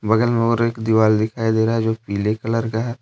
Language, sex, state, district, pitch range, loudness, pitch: Hindi, male, Jharkhand, Deoghar, 110-115 Hz, -19 LUFS, 110 Hz